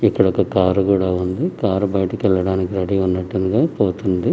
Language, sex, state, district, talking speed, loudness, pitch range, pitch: Telugu, male, Andhra Pradesh, Krishna, 150 wpm, -18 LUFS, 95-100 Hz, 95 Hz